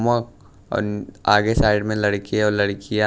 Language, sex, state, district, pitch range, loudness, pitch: Hindi, male, Chhattisgarh, Raipur, 105-110 Hz, -20 LUFS, 105 Hz